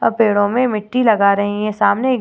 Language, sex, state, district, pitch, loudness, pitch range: Hindi, female, Uttar Pradesh, Varanasi, 215 Hz, -16 LUFS, 205-240 Hz